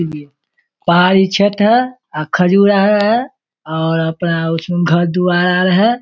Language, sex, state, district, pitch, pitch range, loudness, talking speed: Maithili, male, Bihar, Samastipur, 180 Hz, 165-205 Hz, -14 LUFS, 130 wpm